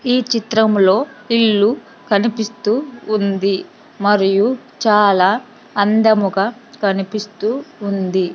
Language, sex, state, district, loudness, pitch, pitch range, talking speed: Telugu, female, Andhra Pradesh, Sri Satya Sai, -16 LUFS, 215 Hz, 200-230 Hz, 70 wpm